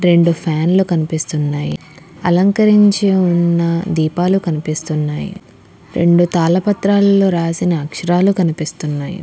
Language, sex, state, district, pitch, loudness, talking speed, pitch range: Telugu, female, Andhra Pradesh, Krishna, 170 Hz, -15 LUFS, 85 wpm, 160-185 Hz